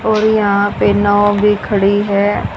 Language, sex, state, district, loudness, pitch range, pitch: Hindi, female, Haryana, Charkhi Dadri, -13 LUFS, 200-210 Hz, 205 Hz